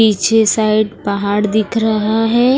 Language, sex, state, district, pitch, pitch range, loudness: Hindi, female, Haryana, Rohtak, 215 Hz, 210-225 Hz, -14 LUFS